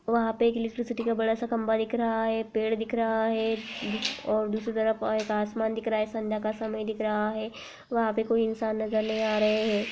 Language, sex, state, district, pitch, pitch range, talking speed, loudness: Hindi, female, Uttar Pradesh, Jalaun, 220 Hz, 215-230 Hz, 235 wpm, -28 LUFS